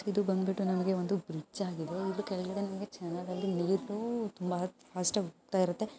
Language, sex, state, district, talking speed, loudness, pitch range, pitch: Kannada, female, Karnataka, Mysore, 140 wpm, -34 LUFS, 180-200 Hz, 190 Hz